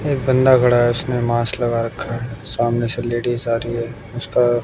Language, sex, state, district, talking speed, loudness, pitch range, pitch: Hindi, male, Bihar, West Champaran, 205 wpm, -19 LUFS, 115-120 Hz, 120 Hz